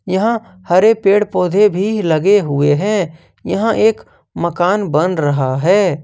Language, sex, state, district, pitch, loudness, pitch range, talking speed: Hindi, male, Jharkhand, Ranchi, 190 Hz, -14 LUFS, 165-210 Hz, 140 wpm